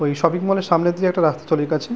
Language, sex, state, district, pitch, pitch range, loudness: Bengali, male, West Bengal, Purulia, 170 Hz, 155-185 Hz, -19 LUFS